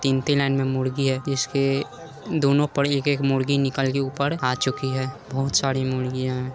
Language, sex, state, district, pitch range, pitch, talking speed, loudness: Hindi, male, Bihar, Saran, 130-140 Hz, 135 Hz, 175 wpm, -23 LUFS